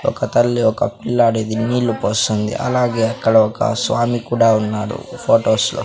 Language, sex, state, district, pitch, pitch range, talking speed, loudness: Telugu, male, Andhra Pradesh, Sri Satya Sai, 115 Hz, 110-120 Hz, 155 wpm, -17 LUFS